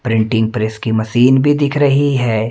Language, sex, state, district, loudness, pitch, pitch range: Hindi, male, Madhya Pradesh, Umaria, -14 LUFS, 120 Hz, 110-140 Hz